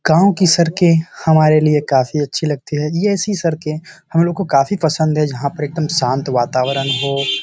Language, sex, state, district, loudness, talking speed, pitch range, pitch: Hindi, male, Bihar, Samastipur, -16 LUFS, 200 wpm, 140-170 Hz, 155 Hz